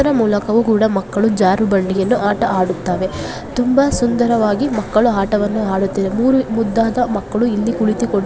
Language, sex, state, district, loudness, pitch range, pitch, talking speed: Kannada, female, Karnataka, Bijapur, -16 LUFS, 200-235 Hz, 215 Hz, 125 wpm